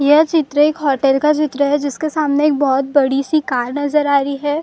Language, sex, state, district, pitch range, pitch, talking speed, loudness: Hindi, female, Maharashtra, Gondia, 275-300 Hz, 285 Hz, 260 wpm, -16 LUFS